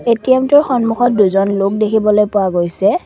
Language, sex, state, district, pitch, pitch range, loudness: Assamese, female, Assam, Kamrup Metropolitan, 215 Hz, 195-240 Hz, -13 LUFS